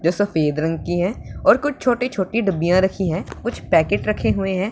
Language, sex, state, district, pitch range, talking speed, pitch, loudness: Hindi, female, Punjab, Pathankot, 165-210 Hz, 215 wpm, 185 Hz, -20 LUFS